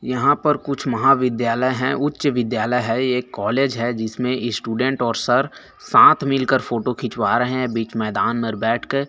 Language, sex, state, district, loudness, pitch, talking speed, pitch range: Chhattisgarhi, male, Chhattisgarh, Korba, -19 LUFS, 125 Hz, 170 wpm, 115-135 Hz